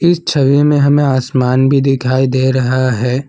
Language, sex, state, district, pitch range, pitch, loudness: Hindi, male, Assam, Kamrup Metropolitan, 130-140 Hz, 130 Hz, -12 LUFS